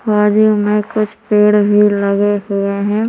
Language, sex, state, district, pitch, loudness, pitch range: Hindi, female, Chhattisgarh, Korba, 210 Hz, -13 LUFS, 205-210 Hz